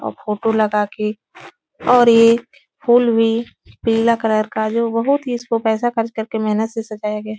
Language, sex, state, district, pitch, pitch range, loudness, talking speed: Hindi, female, Uttar Pradesh, Etah, 225 Hz, 215-235 Hz, -17 LUFS, 180 wpm